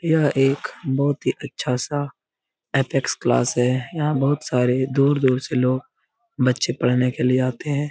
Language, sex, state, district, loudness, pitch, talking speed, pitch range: Hindi, male, Bihar, Lakhisarai, -21 LUFS, 135 Hz, 160 wpm, 125-145 Hz